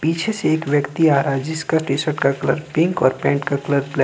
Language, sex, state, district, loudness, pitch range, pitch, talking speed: Hindi, male, Jharkhand, Ranchi, -19 LUFS, 140-160 Hz, 145 Hz, 250 wpm